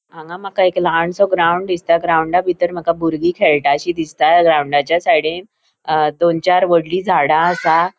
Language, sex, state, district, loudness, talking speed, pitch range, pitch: Konkani, female, Goa, North and South Goa, -15 LUFS, 145 wpm, 160-180 Hz, 170 Hz